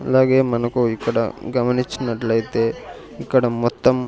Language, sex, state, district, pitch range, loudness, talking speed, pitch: Telugu, male, Andhra Pradesh, Sri Satya Sai, 115-125 Hz, -20 LUFS, 105 wpm, 120 Hz